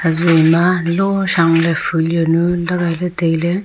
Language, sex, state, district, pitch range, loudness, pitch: Wancho, female, Arunachal Pradesh, Longding, 165-180 Hz, -15 LUFS, 170 Hz